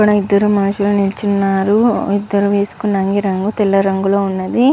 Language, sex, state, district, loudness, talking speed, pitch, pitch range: Telugu, male, Andhra Pradesh, Visakhapatnam, -15 LUFS, 140 wpm, 200 Hz, 195-205 Hz